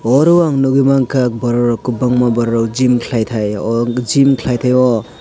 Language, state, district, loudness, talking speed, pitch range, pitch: Kokborok, Tripura, West Tripura, -14 LUFS, 150 wpm, 120-135 Hz, 125 Hz